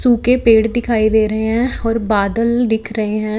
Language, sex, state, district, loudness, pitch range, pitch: Hindi, female, Chhattisgarh, Raipur, -15 LUFS, 215-235 Hz, 225 Hz